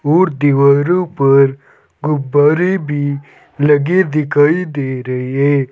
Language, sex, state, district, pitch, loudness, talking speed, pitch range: Hindi, male, Uttar Pradesh, Saharanpur, 145 Hz, -14 LUFS, 105 wpm, 140-155 Hz